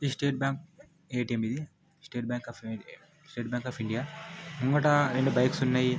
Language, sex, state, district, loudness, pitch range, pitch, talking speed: Telugu, male, Telangana, Nalgonda, -30 LUFS, 120-150 Hz, 135 Hz, 180 wpm